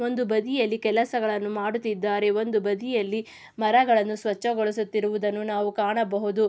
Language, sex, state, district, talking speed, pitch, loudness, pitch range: Kannada, female, Karnataka, Mysore, 90 wpm, 215 Hz, -25 LUFS, 210-225 Hz